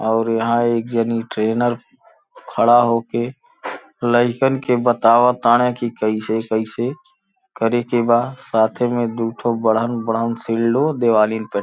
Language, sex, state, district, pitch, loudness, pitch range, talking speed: Bhojpuri, male, Uttar Pradesh, Gorakhpur, 120 Hz, -18 LUFS, 115-125 Hz, 140 wpm